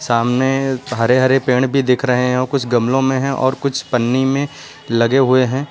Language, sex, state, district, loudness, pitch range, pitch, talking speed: Hindi, male, Uttar Pradesh, Lucknow, -16 LUFS, 125-135 Hz, 130 Hz, 200 wpm